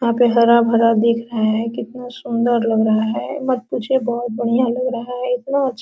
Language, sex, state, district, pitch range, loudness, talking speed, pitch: Hindi, female, Bihar, Araria, 230-250 Hz, -18 LUFS, 215 wpm, 240 Hz